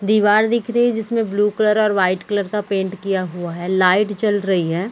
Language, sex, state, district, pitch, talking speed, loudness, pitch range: Hindi, female, Chhattisgarh, Balrampur, 205 Hz, 230 wpm, -18 LUFS, 190-215 Hz